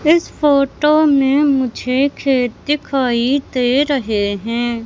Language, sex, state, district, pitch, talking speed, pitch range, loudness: Hindi, female, Madhya Pradesh, Katni, 270 Hz, 110 wpm, 245-285 Hz, -16 LUFS